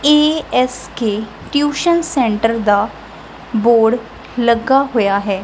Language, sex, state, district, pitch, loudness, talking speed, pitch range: Punjabi, female, Punjab, Kapurthala, 235 Hz, -15 LUFS, 110 wpm, 220-280 Hz